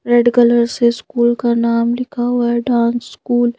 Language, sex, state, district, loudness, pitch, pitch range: Hindi, female, Madhya Pradesh, Bhopal, -15 LUFS, 240 Hz, 235-240 Hz